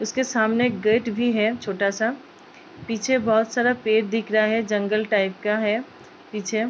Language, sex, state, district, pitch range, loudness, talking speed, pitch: Hindi, female, Uttar Pradesh, Ghazipur, 215-240 Hz, -22 LUFS, 170 wpm, 220 Hz